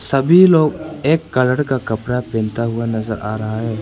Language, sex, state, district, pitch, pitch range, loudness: Hindi, male, Arunachal Pradesh, Papum Pare, 120 Hz, 110-150 Hz, -17 LUFS